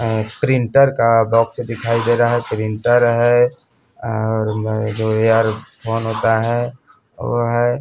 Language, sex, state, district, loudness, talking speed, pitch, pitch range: Hindi, male, Bihar, Kaimur, -17 LUFS, 130 wpm, 115 Hz, 110-120 Hz